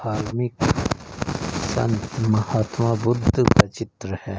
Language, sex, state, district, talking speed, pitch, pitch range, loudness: Hindi, male, Punjab, Fazilka, 95 wpm, 115 Hz, 110-120 Hz, -22 LUFS